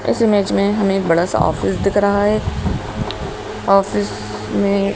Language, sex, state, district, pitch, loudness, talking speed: Hindi, male, Madhya Pradesh, Bhopal, 195 Hz, -17 LUFS, 155 wpm